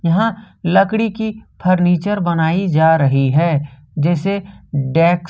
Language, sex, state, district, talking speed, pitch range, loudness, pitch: Hindi, male, Jharkhand, Ranchi, 125 wpm, 160-195 Hz, -16 LUFS, 175 Hz